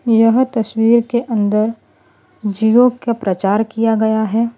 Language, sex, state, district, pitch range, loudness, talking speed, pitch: Hindi, female, Gujarat, Valsad, 220-235 Hz, -15 LUFS, 130 wpm, 225 Hz